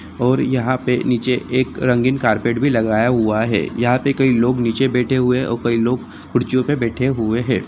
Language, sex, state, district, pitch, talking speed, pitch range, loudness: Hindi, male, Jharkhand, Sahebganj, 125 Hz, 210 wpm, 115-130 Hz, -18 LUFS